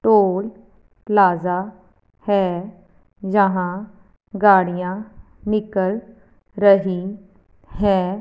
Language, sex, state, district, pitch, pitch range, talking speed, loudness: Hindi, female, Punjab, Fazilka, 195 Hz, 185-205 Hz, 60 wpm, -19 LUFS